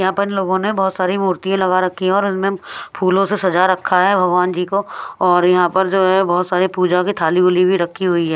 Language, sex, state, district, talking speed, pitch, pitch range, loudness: Hindi, female, Punjab, Pathankot, 260 wpm, 185 Hz, 180-190 Hz, -16 LUFS